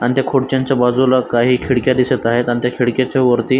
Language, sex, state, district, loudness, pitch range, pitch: Marathi, male, Maharashtra, Solapur, -15 LUFS, 120-130 Hz, 125 Hz